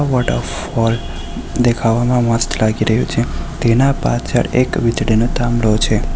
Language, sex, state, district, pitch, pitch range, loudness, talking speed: Gujarati, male, Gujarat, Valsad, 115 Hz, 110-125 Hz, -16 LUFS, 115 wpm